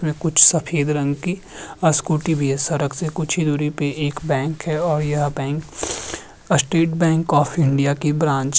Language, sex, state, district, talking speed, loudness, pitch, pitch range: Hindi, male, Uttarakhand, Tehri Garhwal, 195 wpm, -19 LUFS, 150 Hz, 145-160 Hz